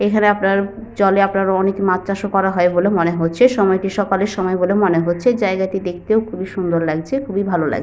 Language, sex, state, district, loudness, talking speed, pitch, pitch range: Bengali, female, Jharkhand, Sahebganj, -17 LUFS, 205 wpm, 195 Hz, 180-200 Hz